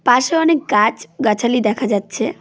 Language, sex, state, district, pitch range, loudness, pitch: Bengali, female, West Bengal, Cooch Behar, 215-280 Hz, -16 LUFS, 240 Hz